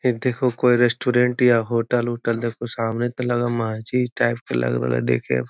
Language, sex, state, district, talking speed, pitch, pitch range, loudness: Magahi, male, Bihar, Gaya, 195 wpm, 120 Hz, 115-125 Hz, -21 LUFS